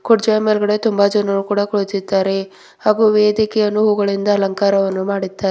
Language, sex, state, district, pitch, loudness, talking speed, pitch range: Kannada, female, Karnataka, Bidar, 205 Hz, -16 LUFS, 120 wpm, 195-215 Hz